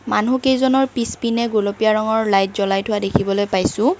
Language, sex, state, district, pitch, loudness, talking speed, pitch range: Assamese, female, Assam, Kamrup Metropolitan, 215 Hz, -18 LUFS, 135 wpm, 200-245 Hz